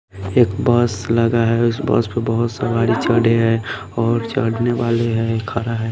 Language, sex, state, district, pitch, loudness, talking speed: Hindi, male, Haryana, Rohtak, 115 Hz, -18 LUFS, 180 wpm